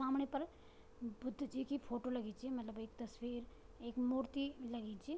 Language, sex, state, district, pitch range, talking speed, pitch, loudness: Garhwali, female, Uttarakhand, Tehri Garhwal, 235-265 Hz, 175 wpm, 250 Hz, -44 LUFS